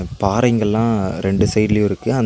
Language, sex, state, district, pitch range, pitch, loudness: Tamil, male, Tamil Nadu, Nilgiris, 100-115 Hz, 105 Hz, -17 LUFS